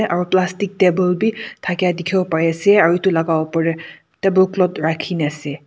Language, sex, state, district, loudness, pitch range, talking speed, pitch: Nagamese, female, Nagaland, Kohima, -17 LUFS, 165-190 Hz, 190 wpm, 180 Hz